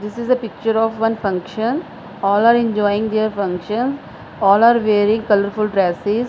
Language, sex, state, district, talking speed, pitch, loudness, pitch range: English, female, Punjab, Fazilka, 160 wpm, 215 Hz, -17 LUFS, 205-230 Hz